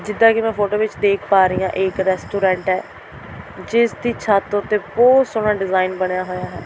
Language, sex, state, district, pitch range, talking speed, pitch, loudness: Punjabi, female, Delhi, New Delhi, 190-220 Hz, 205 wpm, 200 Hz, -18 LUFS